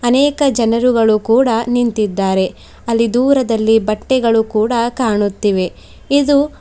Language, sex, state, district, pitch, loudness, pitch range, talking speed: Kannada, female, Karnataka, Bidar, 230 Hz, -14 LUFS, 215-250 Hz, 90 wpm